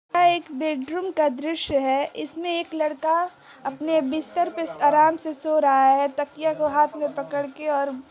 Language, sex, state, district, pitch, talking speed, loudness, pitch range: Hindi, female, Chhattisgarh, Kabirdham, 305 Hz, 185 wpm, -23 LUFS, 285-320 Hz